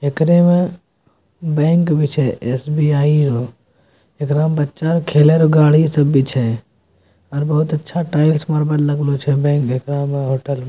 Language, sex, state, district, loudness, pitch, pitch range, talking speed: Maithili, male, Bihar, Bhagalpur, -16 LUFS, 145 Hz, 135-155 Hz, 155 wpm